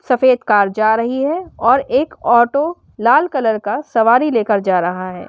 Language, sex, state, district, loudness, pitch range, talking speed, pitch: Hindi, female, Uttar Pradesh, Shamli, -15 LUFS, 210-275 Hz, 180 wpm, 235 Hz